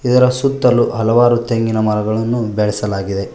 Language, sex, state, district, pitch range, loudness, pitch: Kannada, male, Karnataka, Koppal, 105-120 Hz, -15 LUFS, 115 Hz